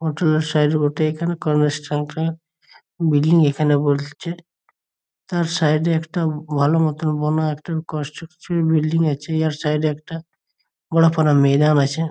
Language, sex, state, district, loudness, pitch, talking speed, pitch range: Bengali, male, West Bengal, Jhargram, -19 LUFS, 155 Hz, 135 wpm, 150-165 Hz